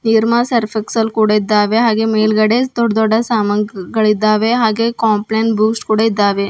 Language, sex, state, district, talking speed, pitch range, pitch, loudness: Kannada, female, Karnataka, Bidar, 140 wpm, 215-225 Hz, 220 Hz, -14 LUFS